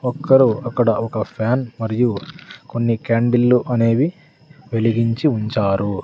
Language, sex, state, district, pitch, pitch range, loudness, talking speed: Telugu, male, Andhra Pradesh, Sri Satya Sai, 115 Hz, 115-130 Hz, -18 LUFS, 100 wpm